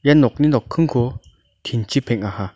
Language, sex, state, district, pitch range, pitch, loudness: Garo, male, Meghalaya, North Garo Hills, 105-145 Hz, 120 Hz, -19 LUFS